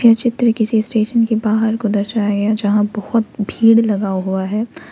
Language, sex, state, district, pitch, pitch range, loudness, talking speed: Hindi, female, Jharkhand, Ranchi, 220 Hz, 205-225 Hz, -16 LUFS, 185 wpm